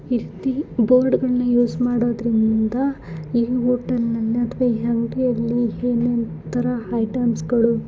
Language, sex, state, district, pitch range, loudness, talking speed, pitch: Kannada, female, Karnataka, Bellary, 230-245 Hz, -20 LUFS, 115 wpm, 240 Hz